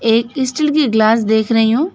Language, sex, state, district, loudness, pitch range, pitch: Hindi, female, West Bengal, Alipurduar, -14 LUFS, 225-280 Hz, 230 Hz